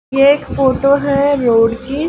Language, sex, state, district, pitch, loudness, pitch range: Hindi, female, Uttar Pradesh, Ghazipur, 275 Hz, -13 LUFS, 260-285 Hz